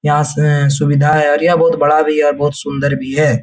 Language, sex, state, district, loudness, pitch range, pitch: Hindi, male, Bihar, Jahanabad, -13 LUFS, 145-150 Hz, 145 Hz